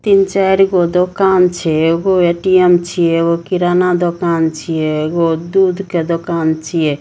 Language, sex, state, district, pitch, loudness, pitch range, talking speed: Maithili, female, Bihar, Samastipur, 175 Hz, -14 LUFS, 165-185 Hz, 130 wpm